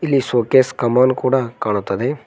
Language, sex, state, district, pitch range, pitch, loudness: Kannada, male, Karnataka, Koppal, 125-135 Hz, 130 Hz, -17 LUFS